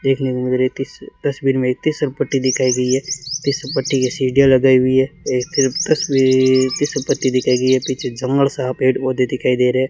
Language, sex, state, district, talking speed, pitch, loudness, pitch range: Hindi, male, Rajasthan, Bikaner, 200 wpm, 130 Hz, -17 LUFS, 130-140 Hz